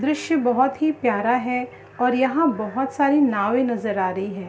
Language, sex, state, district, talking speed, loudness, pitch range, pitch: Hindi, female, Uttar Pradesh, Hamirpur, 200 wpm, -21 LUFS, 235-280 Hz, 250 Hz